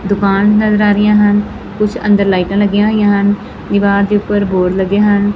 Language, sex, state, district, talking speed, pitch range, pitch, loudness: Punjabi, female, Punjab, Fazilka, 190 wpm, 200-210 Hz, 205 Hz, -12 LUFS